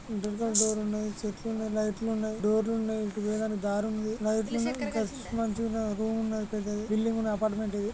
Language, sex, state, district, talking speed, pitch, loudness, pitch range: Telugu, male, Andhra Pradesh, Guntur, 190 wpm, 215 Hz, -30 LUFS, 210-225 Hz